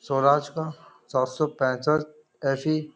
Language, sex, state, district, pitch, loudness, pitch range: Hindi, male, Uttar Pradesh, Jyotiba Phule Nagar, 150 Hz, -25 LUFS, 135-155 Hz